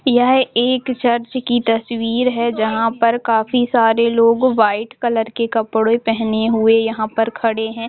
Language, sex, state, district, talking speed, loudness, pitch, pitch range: Hindi, female, Jharkhand, Jamtara, 160 wpm, -16 LUFS, 230 Hz, 225-240 Hz